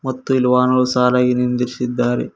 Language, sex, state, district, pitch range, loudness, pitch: Kannada, male, Karnataka, Koppal, 125-130 Hz, -17 LUFS, 125 Hz